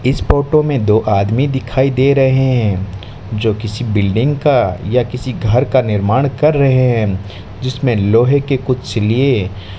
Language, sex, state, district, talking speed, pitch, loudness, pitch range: Hindi, male, Rajasthan, Bikaner, 165 wpm, 125 Hz, -14 LUFS, 105-135 Hz